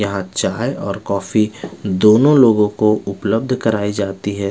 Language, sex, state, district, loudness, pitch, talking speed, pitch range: Hindi, male, Bihar, Patna, -16 LUFS, 105 Hz, 135 wpm, 100-110 Hz